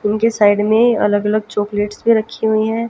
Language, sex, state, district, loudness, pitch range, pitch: Hindi, female, Haryana, Jhajjar, -15 LUFS, 205-225 Hz, 215 Hz